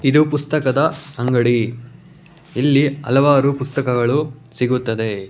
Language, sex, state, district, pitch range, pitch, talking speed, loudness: Kannada, male, Karnataka, Bangalore, 120-145 Hz, 135 Hz, 80 wpm, -18 LUFS